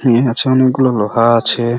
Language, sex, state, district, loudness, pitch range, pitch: Bengali, male, West Bengal, Purulia, -12 LUFS, 115-130 Hz, 120 Hz